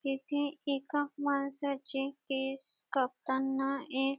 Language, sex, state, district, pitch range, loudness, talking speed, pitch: Marathi, female, Maharashtra, Dhule, 270-285 Hz, -34 LUFS, 85 wpm, 275 Hz